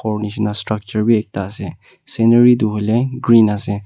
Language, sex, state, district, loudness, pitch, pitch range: Nagamese, male, Nagaland, Kohima, -16 LUFS, 110 Hz, 105-115 Hz